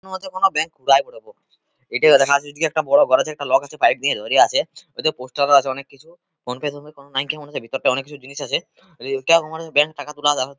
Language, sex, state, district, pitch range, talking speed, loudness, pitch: Bengali, male, West Bengal, Purulia, 140-165 Hz, 210 wpm, -19 LUFS, 150 Hz